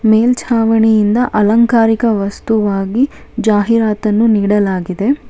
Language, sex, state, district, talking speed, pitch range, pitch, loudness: Kannada, female, Karnataka, Bangalore, 55 wpm, 210-230 Hz, 220 Hz, -13 LUFS